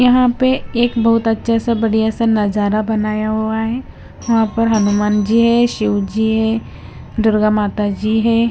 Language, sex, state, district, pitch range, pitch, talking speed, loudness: Hindi, female, Bihar, West Champaran, 215-230 Hz, 220 Hz, 170 wpm, -16 LUFS